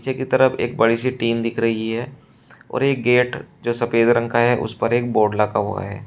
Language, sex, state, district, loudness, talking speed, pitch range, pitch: Hindi, male, Uttar Pradesh, Shamli, -19 LUFS, 245 wpm, 115-125 Hz, 120 Hz